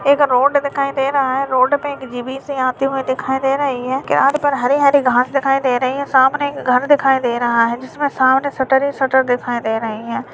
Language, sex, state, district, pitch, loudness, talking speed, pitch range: Hindi, male, Uttarakhand, Tehri Garhwal, 265 Hz, -16 LUFS, 230 wpm, 255-280 Hz